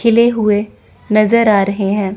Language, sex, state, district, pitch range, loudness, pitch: Hindi, female, Chandigarh, Chandigarh, 200-230 Hz, -13 LUFS, 210 Hz